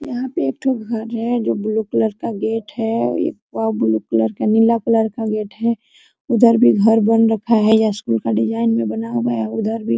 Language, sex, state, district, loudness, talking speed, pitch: Hindi, female, Jharkhand, Sahebganj, -18 LUFS, 220 wpm, 220 Hz